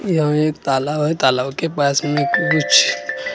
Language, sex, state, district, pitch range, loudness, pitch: Hindi, male, Maharashtra, Gondia, 135-155 Hz, -17 LUFS, 150 Hz